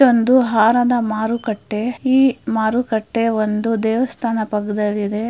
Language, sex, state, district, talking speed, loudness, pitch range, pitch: Kannada, female, Karnataka, Mysore, 115 wpm, -18 LUFS, 215-245 Hz, 225 Hz